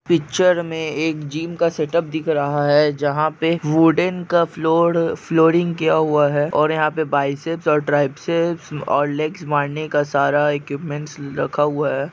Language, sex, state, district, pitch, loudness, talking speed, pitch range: Hindi, male, Maharashtra, Nagpur, 155 Hz, -19 LUFS, 165 wpm, 145-165 Hz